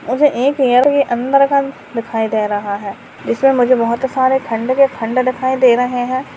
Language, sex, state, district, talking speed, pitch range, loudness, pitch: Hindi, female, Bihar, Purnia, 195 wpm, 235-270 Hz, -15 LUFS, 255 Hz